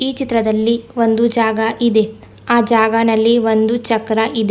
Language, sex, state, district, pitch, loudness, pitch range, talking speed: Kannada, female, Karnataka, Bidar, 225 Hz, -15 LUFS, 220-235 Hz, 135 wpm